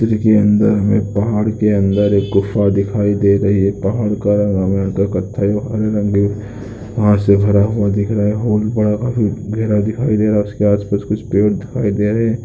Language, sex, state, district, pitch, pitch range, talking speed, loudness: Hindi, male, Uttarakhand, Uttarkashi, 105 Hz, 100-105 Hz, 205 wpm, -15 LUFS